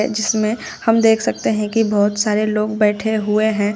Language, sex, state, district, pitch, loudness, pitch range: Hindi, female, Uttar Pradesh, Shamli, 215 Hz, -17 LUFS, 210-220 Hz